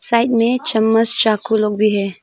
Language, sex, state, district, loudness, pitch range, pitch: Hindi, female, Arunachal Pradesh, Papum Pare, -16 LUFS, 215-235 Hz, 225 Hz